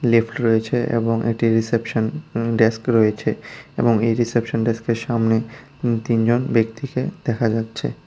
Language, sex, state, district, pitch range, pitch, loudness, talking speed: Bengali, female, Tripura, West Tripura, 115-120 Hz, 115 Hz, -20 LUFS, 120 wpm